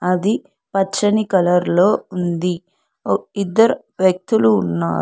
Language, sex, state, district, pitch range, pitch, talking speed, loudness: Telugu, female, Telangana, Hyderabad, 180-210 Hz, 185 Hz, 95 wpm, -18 LUFS